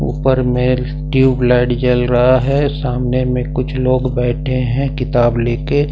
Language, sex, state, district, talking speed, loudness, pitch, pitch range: Hindi, male, Jharkhand, Ranchi, 160 wpm, -15 LUFS, 130 Hz, 125-135 Hz